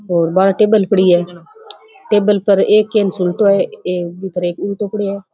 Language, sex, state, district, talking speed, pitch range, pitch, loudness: Rajasthani, female, Rajasthan, Churu, 190 wpm, 180-210 Hz, 195 Hz, -15 LUFS